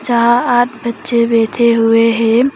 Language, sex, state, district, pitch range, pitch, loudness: Hindi, female, Arunachal Pradesh, Papum Pare, 230-240 Hz, 235 Hz, -12 LUFS